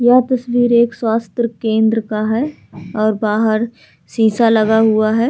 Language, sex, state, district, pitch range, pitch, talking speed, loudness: Hindi, female, Uttar Pradesh, Hamirpur, 220-235 Hz, 225 Hz, 145 wpm, -15 LUFS